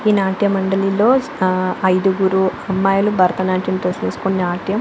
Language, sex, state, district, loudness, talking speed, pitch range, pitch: Telugu, female, Andhra Pradesh, Anantapur, -17 LUFS, 135 wpm, 185-195 Hz, 190 Hz